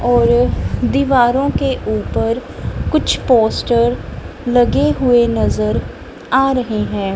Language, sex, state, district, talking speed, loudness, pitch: Hindi, female, Punjab, Kapurthala, 100 wpm, -15 LUFS, 235 Hz